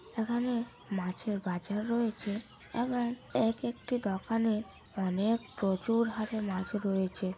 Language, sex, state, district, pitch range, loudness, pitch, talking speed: Bengali, female, West Bengal, Malda, 195-235 Hz, -33 LUFS, 215 Hz, 115 wpm